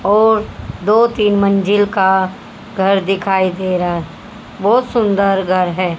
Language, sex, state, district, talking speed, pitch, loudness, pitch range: Hindi, female, Haryana, Rohtak, 140 wpm, 195 Hz, -15 LUFS, 185-210 Hz